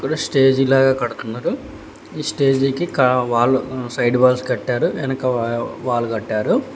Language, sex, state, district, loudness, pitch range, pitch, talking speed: Telugu, male, Telangana, Hyderabad, -18 LUFS, 120-135 Hz, 130 Hz, 115 wpm